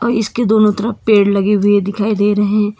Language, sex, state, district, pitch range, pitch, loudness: Hindi, female, Karnataka, Bangalore, 205-220 Hz, 210 Hz, -14 LUFS